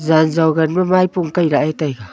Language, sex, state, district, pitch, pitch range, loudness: Wancho, female, Arunachal Pradesh, Longding, 160 Hz, 155-175 Hz, -16 LUFS